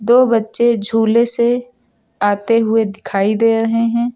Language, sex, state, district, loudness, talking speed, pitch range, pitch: Hindi, female, Uttar Pradesh, Lucknow, -15 LUFS, 145 wpm, 220-235 Hz, 230 Hz